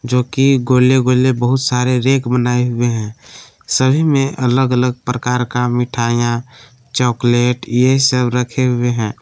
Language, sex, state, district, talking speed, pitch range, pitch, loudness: Hindi, male, Jharkhand, Palamu, 150 wpm, 120-130 Hz, 125 Hz, -15 LUFS